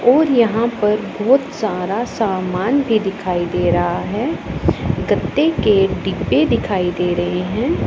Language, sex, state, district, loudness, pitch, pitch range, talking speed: Hindi, female, Punjab, Pathankot, -17 LUFS, 205 Hz, 180-235 Hz, 135 wpm